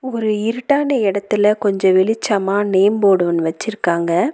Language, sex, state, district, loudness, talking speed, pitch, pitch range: Tamil, female, Tamil Nadu, Nilgiris, -16 LUFS, 125 wpm, 205 Hz, 190-220 Hz